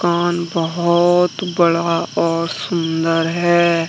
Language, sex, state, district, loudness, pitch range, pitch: Hindi, male, Jharkhand, Deoghar, -17 LUFS, 165-175 Hz, 170 Hz